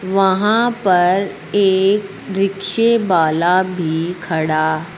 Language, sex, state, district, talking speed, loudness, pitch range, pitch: Hindi, male, Punjab, Fazilka, 85 wpm, -16 LUFS, 170-200 Hz, 190 Hz